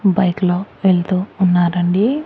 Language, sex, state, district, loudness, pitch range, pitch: Telugu, female, Andhra Pradesh, Annamaya, -16 LUFS, 175-195 Hz, 185 Hz